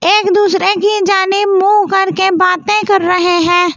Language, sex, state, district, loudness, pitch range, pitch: Hindi, female, Delhi, New Delhi, -11 LUFS, 365-405 Hz, 385 Hz